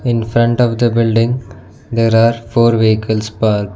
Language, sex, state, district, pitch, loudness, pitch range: English, male, Karnataka, Bangalore, 115 Hz, -14 LUFS, 110-115 Hz